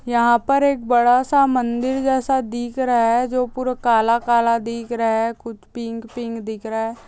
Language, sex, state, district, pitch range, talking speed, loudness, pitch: Hindi, female, Bihar, Saharsa, 230-255 Hz, 185 wpm, -19 LUFS, 235 Hz